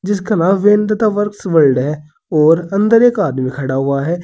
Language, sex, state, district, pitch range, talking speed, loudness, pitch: Hindi, male, Uttar Pradesh, Saharanpur, 145-205 Hz, 100 wpm, -14 LUFS, 175 Hz